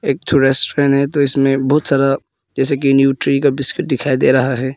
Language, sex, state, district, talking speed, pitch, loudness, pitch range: Hindi, female, Arunachal Pradesh, Papum Pare, 215 wpm, 135 Hz, -15 LUFS, 135-140 Hz